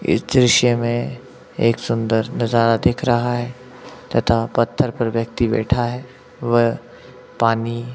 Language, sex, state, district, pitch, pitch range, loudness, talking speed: Hindi, male, Himachal Pradesh, Shimla, 120 Hz, 115-125 Hz, -19 LUFS, 130 wpm